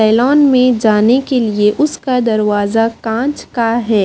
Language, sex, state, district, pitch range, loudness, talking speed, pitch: Hindi, female, Haryana, Jhajjar, 220-255 Hz, -13 LUFS, 150 wpm, 230 Hz